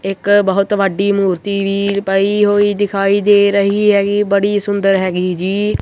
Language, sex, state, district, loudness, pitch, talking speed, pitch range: Punjabi, male, Punjab, Kapurthala, -14 LUFS, 200 Hz, 155 wpm, 195-205 Hz